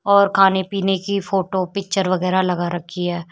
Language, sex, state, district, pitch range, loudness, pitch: Hindi, female, Uttar Pradesh, Shamli, 180-195 Hz, -19 LUFS, 190 Hz